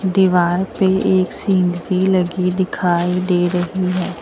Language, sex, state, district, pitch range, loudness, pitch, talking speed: Hindi, female, Uttar Pradesh, Lucknow, 180-185 Hz, -17 LUFS, 185 Hz, 130 wpm